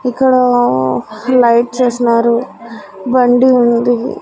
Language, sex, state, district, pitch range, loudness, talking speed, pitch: Telugu, female, Andhra Pradesh, Annamaya, 235-250 Hz, -12 LUFS, 70 wpm, 245 Hz